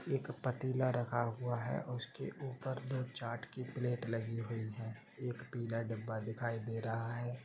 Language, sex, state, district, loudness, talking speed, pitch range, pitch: Hindi, male, Jharkhand, Jamtara, -40 LUFS, 170 wpm, 115-130 Hz, 120 Hz